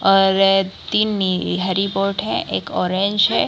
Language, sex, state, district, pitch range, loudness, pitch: Hindi, female, Bihar, Kishanganj, 190-200 Hz, -18 LUFS, 195 Hz